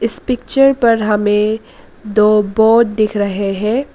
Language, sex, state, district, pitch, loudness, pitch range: Hindi, female, Arunachal Pradesh, Lower Dibang Valley, 215 Hz, -14 LUFS, 210-230 Hz